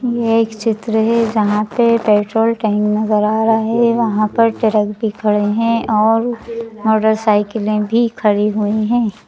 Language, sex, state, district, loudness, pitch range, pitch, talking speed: Hindi, female, Madhya Pradesh, Bhopal, -15 LUFS, 210-230 Hz, 220 Hz, 155 wpm